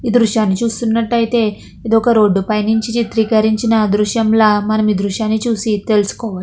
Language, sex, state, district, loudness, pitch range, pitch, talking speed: Telugu, female, Andhra Pradesh, Chittoor, -15 LUFS, 215-230 Hz, 220 Hz, 110 wpm